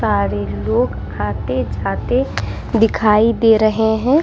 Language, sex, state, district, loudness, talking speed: Hindi, female, Uttar Pradesh, Muzaffarnagar, -17 LUFS, 115 wpm